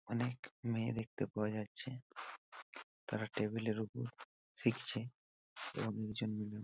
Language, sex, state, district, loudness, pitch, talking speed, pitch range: Bengali, male, West Bengal, Purulia, -42 LUFS, 110 Hz, 115 wpm, 105-120 Hz